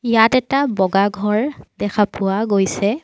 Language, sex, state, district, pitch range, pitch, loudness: Assamese, female, Assam, Sonitpur, 200-235 Hz, 210 Hz, -18 LUFS